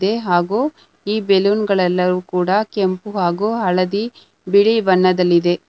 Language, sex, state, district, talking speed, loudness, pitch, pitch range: Kannada, female, Karnataka, Bangalore, 105 wpm, -17 LUFS, 195 Hz, 180-210 Hz